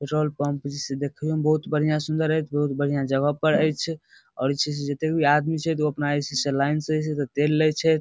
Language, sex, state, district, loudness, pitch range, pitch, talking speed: Maithili, male, Bihar, Darbhanga, -24 LUFS, 145-155 Hz, 150 Hz, 225 wpm